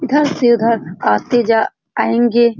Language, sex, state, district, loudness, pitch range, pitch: Hindi, female, Bihar, Saran, -15 LUFS, 225-240 Hz, 235 Hz